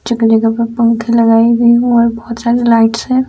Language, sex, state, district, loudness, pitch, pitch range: Hindi, female, Bihar, Sitamarhi, -11 LUFS, 230 Hz, 230-235 Hz